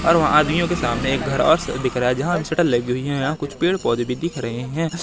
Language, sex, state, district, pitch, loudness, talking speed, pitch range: Hindi, male, Madhya Pradesh, Katni, 145 Hz, -20 LUFS, 285 wpm, 125-170 Hz